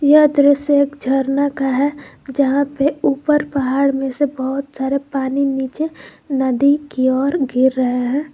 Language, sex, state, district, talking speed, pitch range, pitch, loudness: Hindi, female, Jharkhand, Garhwa, 160 wpm, 265-285 Hz, 275 Hz, -17 LUFS